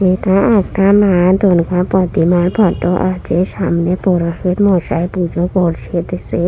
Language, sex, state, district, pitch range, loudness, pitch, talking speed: Bengali, female, West Bengal, Purulia, 175-190 Hz, -14 LUFS, 180 Hz, 130 wpm